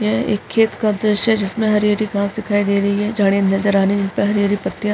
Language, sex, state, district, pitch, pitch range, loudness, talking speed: Hindi, female, Uttar Pradesh, Jyotiba Phule Nagar, 205 Hz, 200-215 Hz, -17 LUFS, 230 wpm